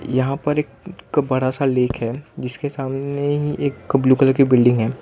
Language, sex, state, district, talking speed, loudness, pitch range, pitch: Hindi, male, Gujarat, Valsad, 190 wpm, -19 LUFS, 125-140 Hz, 135 Hz